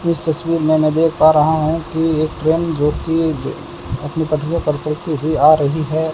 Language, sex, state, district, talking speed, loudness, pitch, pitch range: Hindi, male, Rajasthan, Bikaner, 185 wpm, -16 LUFS, 155 Hz, 155-160 Hz